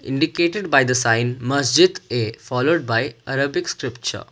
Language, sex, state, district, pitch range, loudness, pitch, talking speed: English, male, Karnataka, Bangalore, 120-165 Hz, -19 LUFS, 135 Hz, 140 wpm